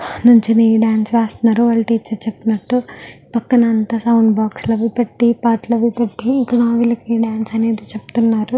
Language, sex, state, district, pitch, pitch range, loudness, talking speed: Telugu, female, Andhra Pradesh, Guntur, 230 Hz, 225-235 Hz, -15 LUFS, 125 wpm